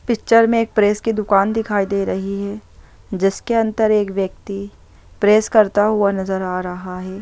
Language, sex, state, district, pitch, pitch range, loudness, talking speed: Hindi, female, Bihar, Lakhisarai, 205 Hz, 195-220 Hz, -18 LUFS, 175 wpm